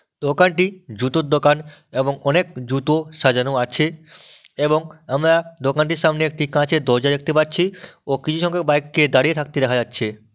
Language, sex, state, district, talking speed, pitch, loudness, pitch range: Bengali, male, West Bengal, Malda, 145 wpm, 150 Hz, -19 LUFS, 135-160 Hz